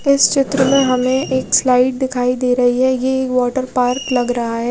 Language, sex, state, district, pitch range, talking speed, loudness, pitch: Hindi, female, Odisha, Khordha, 250-265 Hz, 205 wpm, -15 LUFS, 255 Hz